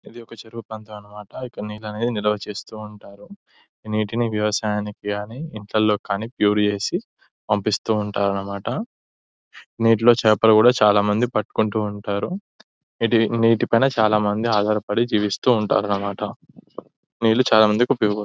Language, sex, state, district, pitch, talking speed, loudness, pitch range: Telugu, male, Telangana, Nalgonda, 105 Hz, 130 wpm, -21 LUFS, 105-115 Hz